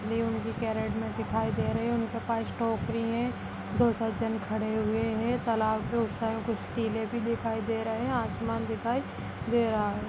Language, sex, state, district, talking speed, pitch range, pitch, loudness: Kumaoni, female, Uttarakhand, Tehri Garhwal, 195 wpm, 220-230 Hz, 225 Hz, -30 LUFS